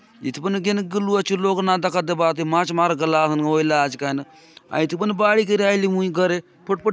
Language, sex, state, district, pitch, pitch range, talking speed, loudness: Halbi, male, Chhattisgarh, Bastar, 180 Hz, 160-195 Hz, 235 wpm, -20 LUFS